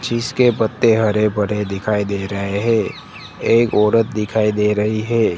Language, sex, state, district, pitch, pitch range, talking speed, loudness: Hindi, male, Gujarat, Gandhinagar, 110 Hz, 105-115 Hz, 155 wpm, -17 LUFS